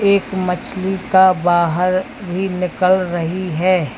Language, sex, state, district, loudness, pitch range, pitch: Hindi, female, Uttar Pradesh, Lalitpur, -17 LUFS, 180-190 Hz, 185 Hz